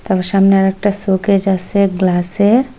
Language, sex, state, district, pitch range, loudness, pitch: Bengali, female, Assam, Hailakandi, 190-200 Hz, -14 LUFS, 195 Hz